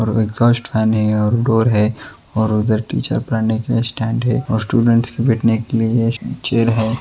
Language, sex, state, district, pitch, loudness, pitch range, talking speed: Hindi, male, Uttar Pradesh, Ghazipur, 115 Hz, -17 LUFS, 110-115 Hz, 205 wpm